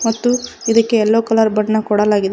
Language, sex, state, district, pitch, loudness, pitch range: Kannada, female, Karnataka, Koppal, 225 Hz, -15 LUFS, 215-230 Hz